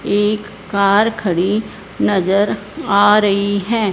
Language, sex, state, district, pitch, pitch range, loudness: Hindi, male, Punjab, Fazilka, 205 Hz, 200-210 Hz, -16 LUFS